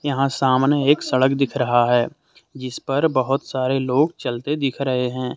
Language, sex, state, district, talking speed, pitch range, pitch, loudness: Hindi, male, Jharkhand, Deoghar, 155 wpm, 130-140 Hz, 135 Hz, -20 LUFS